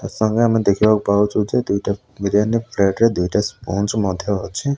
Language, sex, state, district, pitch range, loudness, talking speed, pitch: Odia, male, Odisha, Malkangiri, 100-110 Hz, -18 LUFS, 175 wpm, 105 Hz